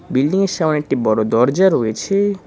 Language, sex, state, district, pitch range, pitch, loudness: Bengali, male, West Bengal, Cooch Behar, 125-195 Hz, 155 Hz, -16 LUFS